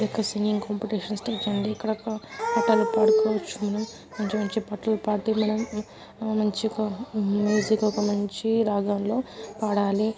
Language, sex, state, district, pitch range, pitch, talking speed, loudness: Telugu, female, Telangana, Karimnagar, 210-220 Hz, 215 Hz, 120 wpm, -26 LUFS